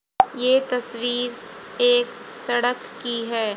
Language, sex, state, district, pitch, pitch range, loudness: Hindi, female, Haryana, Jhajjar, 245 Hz, 240-265 Hz, -22 LUFS